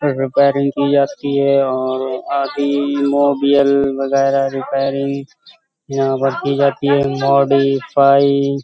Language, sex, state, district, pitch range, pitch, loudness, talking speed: Hindi, male, Uttar Pradesh, Hamirpur, 135-140 Hz, 140 Hz, -15 LUFS, 110 wpm